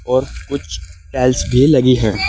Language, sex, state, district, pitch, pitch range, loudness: Hindi, male, Uttar Pradesh, Saharanpur, 125 Hz, 100-130 Hz, -15 LUFS